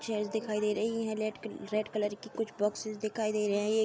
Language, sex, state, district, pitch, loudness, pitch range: Hindi, female, Uttar Pradesh, Jalaun, 215 Hz, -33 LUFS, 210-220 Hz